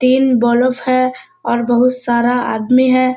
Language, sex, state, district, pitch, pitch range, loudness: Hindi, female, Bihar, Kishanganj, 255 Hz, 240-255 Hz, -14 LUFS